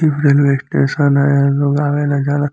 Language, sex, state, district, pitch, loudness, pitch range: Bhojpuri, male, Uttar Pradesh, Gorakhpur, 145 Hz, -14 LUFS, 140-145 Hz